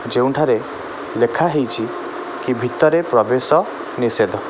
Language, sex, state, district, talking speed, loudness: Odia, male, Odisha, Khordha, 95 wpm, -18 LUFS